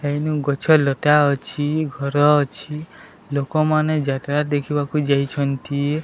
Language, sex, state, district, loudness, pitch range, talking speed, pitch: Odia, male, Odisha, Sambalpur, -20 LUFS, 140-150 Hz, 90 wpm, 145 Hz